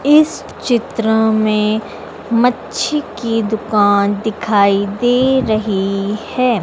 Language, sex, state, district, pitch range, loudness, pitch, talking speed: Hindi, female, Madhya Pradesh, Dhar, 205-245 Hz, -15 LUFS, 220 Hz, 90 wpm